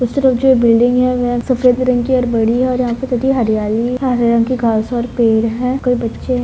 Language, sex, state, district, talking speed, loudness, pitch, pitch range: Hindi, female, Bihar, Purnia, 160 wpm, -14 LUFS, 245 Hz, 235-255 Hz